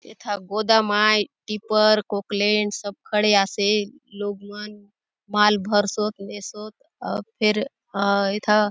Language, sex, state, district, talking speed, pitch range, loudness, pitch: Halbi, female, Chhattisgarh, Bastar, 125 wpm, 205-215 Hz, -22 LUFS, 210 Hz